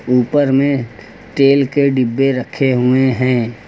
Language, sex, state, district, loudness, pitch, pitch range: Hindi, male, Uttar Pradesh, Lucknow, -14 LUFS, 130 Hz, 125-140 Hz